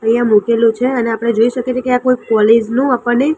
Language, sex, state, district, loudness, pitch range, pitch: Gujarati, female, Gujarat, Gandhinagar, -14 LUFS, 230-250 Hz, 235 Hz